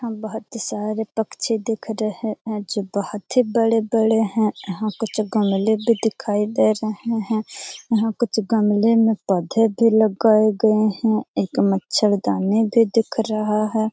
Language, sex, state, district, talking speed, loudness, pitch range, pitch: Hindi, female, Bihar, Jamui, 155 wpm, -20 LUFS, 210-225 Hz, 220 Hz